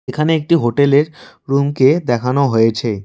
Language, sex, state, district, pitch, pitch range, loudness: Bengali, male, West Bengal, Cooch Behar, 140 Hz, 120-145 Hz, -15 LUFS